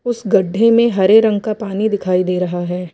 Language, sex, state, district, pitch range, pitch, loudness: Hindi, female, Uttar Pradesh, Lucknow, 180-220 Hz, 205 Hz, -15 LUFS